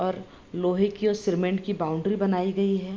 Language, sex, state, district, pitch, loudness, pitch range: Hindi, female, Bihar, Begusarai, 190 Hz, -26 LUFS, 180-200 Hz